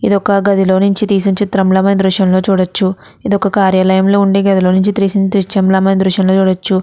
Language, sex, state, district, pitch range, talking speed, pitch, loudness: Telugu, female, Andhra Pradesh, Guntur, 190-200 Hz, 175 wpm, 195 Hz, -12 LUFS